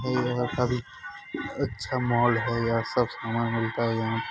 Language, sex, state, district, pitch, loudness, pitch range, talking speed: Hindi, male, Uttar Pradesh, Hamirpur, 115 Hz, -27 LUFS, 115-125 Hz, 210 wpm